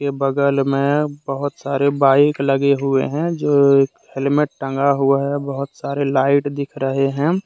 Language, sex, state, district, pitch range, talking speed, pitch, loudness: Hindi, male, Jharkhand, Deoghar, 135-145 Hz, 170 wpm, 140 Hz, -18 LUFS